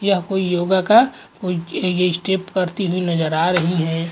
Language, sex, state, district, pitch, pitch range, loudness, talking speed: Hindi, male, Uttar Pradesh, Muzaffarnagar, 180 Hz, 170-190 Hz, -19 LUFS, 205 wpm